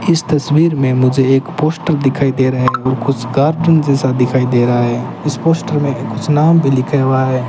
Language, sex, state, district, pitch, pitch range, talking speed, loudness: Hindi, male, Rajasthan, Bikaner, 135 Hz, 130-155 Hz, 215 wpm, -14 LUFS